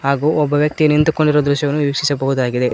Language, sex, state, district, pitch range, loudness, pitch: Kannada, male, Karnataka, Koppal, 140-150 Hz, -16 LUFS, 145 Hz